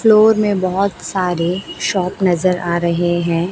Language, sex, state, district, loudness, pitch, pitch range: Hindi, female, Chhattisgarh, Raipur, -16 LUFS, 185 Hz, 175-195 Hz